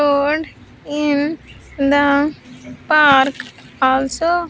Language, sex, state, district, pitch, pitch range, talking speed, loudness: English, female, Andhra Pradesh, Sri Satya Sai, 290 Hz, 280-305 Hz, 65 wpm, -16 LUFS